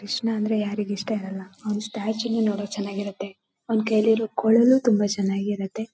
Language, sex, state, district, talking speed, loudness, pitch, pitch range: Kannada, female, Karnataka, Shimoga, 160 wpm, -24 LUFS, 210 Hz, 200-220 Hz